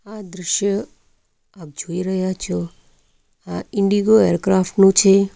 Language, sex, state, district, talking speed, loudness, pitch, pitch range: Gujarati, female, Gujarat, Valsad, 125 wpm, -18 LUFS, 190 Hz, 180-200 Hz